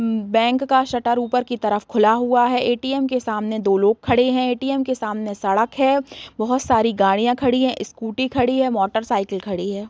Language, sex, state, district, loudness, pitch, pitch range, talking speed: Hindi, female, Bihar, Gopalganj, -19 LUFS, 240 Hz, 210-255 Hz, 210 wpm